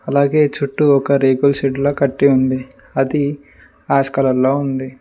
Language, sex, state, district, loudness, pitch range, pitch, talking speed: Telugu, male, Telangana, Mahabubabad, -16 LUFS, 135-140 Hz, 140 Hz, 130 wpm